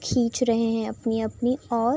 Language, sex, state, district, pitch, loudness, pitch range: Hindi, female, Bihar, Saharsa, 230 Hz, -25 LUFS, 225-245 Hz